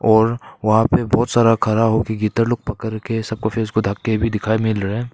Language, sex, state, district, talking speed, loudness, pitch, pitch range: Hindi, male, Arunachal Pradesh, Papum Pare, 245 wpm, -18 LUFS, 110 Hz, 110-115 Hz